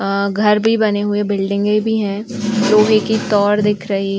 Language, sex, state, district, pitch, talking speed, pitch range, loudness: Hindi, female, Uttar Pradesh, Varanasi, 210 Hz, 200 wpm, 200-215 Hz, -16 LUFS